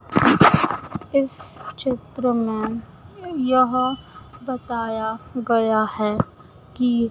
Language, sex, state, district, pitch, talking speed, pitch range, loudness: Hindi, female, Madhya Pradesh, Dhar, 245 Hz, 70 wpm, 225-255 Hz, -21 LUFS